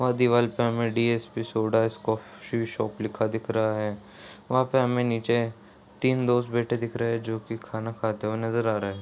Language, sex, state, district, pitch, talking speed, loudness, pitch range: Hindi, male, Bihar, Darbhanga, 115 Hz, 220 wpm, -27 LUFS, 110-120 Hz